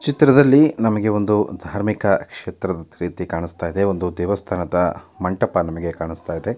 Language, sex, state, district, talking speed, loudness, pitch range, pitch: Kannada, male, Karnataka, Dakshina Kannada, 120 wpm, -20 LUFS, 85-105 Hz, 95 Hz